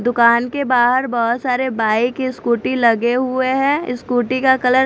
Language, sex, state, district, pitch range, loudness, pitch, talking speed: Hindi, female, Chandigarh, Chandigarh, 235-260 Hz, -17 LUFS, 250 Hz, 175 wpm